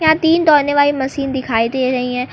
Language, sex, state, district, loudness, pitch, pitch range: Hindi, female, Uttar Pradesh, Lucknow, -15 LUFS, 275 Hz, 255-295 Hz